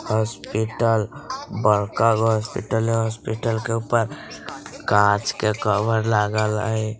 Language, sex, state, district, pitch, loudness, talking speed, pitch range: Bajjika, female, Bihar, Vaishali, 110 Hz, -22 LUFS, 110 wpm, 105-115 Hz